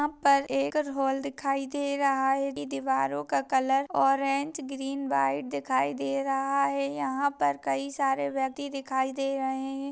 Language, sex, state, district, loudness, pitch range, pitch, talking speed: Hindi, female, Maharashtra, Pune, -28 LUFS, 260-275 Hz, 270 Hz, 170 wpm